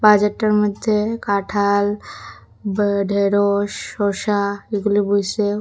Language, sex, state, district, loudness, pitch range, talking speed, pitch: Bengali, female, Tripura, West Tripura, -19 LUFS, 200-210 Hz, 85 wpm, 205 Hz